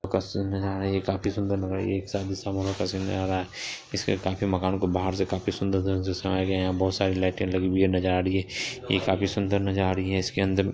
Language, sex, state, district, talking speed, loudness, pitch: Hindi, female, Bihar, Purnia, 280 wpm, -27 LUFS, 95 Hz